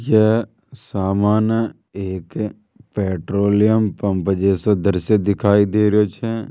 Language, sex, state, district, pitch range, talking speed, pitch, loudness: Hindi, male, Rajasthan, Jaipur, 100-110 Hz, 100 wpm, 105 Hz, -18 LUFS